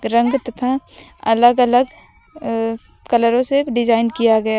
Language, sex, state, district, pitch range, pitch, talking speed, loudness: Hindi, female, Uttar Pradesh, Lucknow, 230-250 Hz, 235 Hz, 145 wpm, -17 LUFS